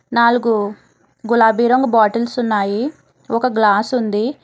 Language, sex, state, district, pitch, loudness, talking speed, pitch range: Telugu, female, Telangana, Hyderabad, 230 Hz, -16 LUFS, 110 wpm, 215-245 Hz